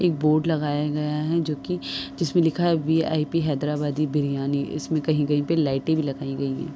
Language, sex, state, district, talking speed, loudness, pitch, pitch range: Hindi, female, Uttar Pradesh, Deoria, 185 wpm, -24 LUFS, 150 Hz, 145-160 Hz